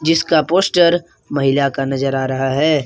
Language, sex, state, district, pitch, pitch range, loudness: Hindi, male, Jharkhand, Garhwa, 145 Hz, 135-165 Hz, -16 LUFS